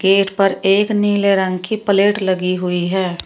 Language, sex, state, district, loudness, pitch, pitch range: Hindi, female, Uttar Pradesh, Shamli, -16 LUFS, 195 Hz, 185-200 Hz